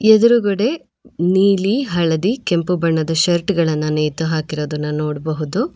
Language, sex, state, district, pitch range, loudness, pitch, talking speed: Kannada, female, Karnataka, Bangalore, 155-200 Hz, -17 LUFS, 170 Hz, 105 wpm